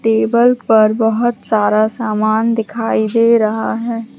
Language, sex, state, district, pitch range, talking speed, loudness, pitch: Hindi, female, Madhya Pradesh, Katni, 215-230 Hz, 130 wpm, -14 LUFS, 225 Hz